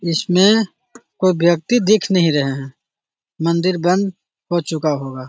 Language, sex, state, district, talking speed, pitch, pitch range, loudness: Magahi, male, Bihar, Jahanabad, 160 wpm, 175 Hz, 160-185 Hz, -17 LUFS